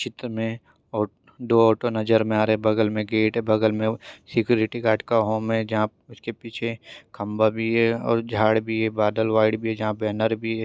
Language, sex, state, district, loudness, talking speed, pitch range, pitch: Hindi, male, Maharashtra, Chandrapur, -23 LUFS, 190 wpm, 110-115 Hz, 110 Hz